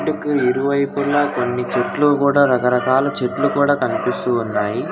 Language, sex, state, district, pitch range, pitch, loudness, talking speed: Telugu, male, Telangana, Hyderabad, 125-140 Hz, 135 Hz, -18 LUFS, 110 wpm